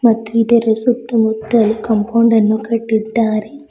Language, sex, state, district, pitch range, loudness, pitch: Kannada, female, Karnataka, Bidar, 220-230 Hz, -15 LUFS, 225 Hz